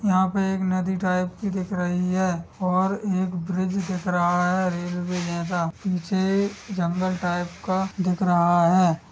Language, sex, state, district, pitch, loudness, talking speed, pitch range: Hindi, male, Chhattisgarh, Sukma, 185 Hz, -24 LUFS, 165 wpm, 175-190 Hz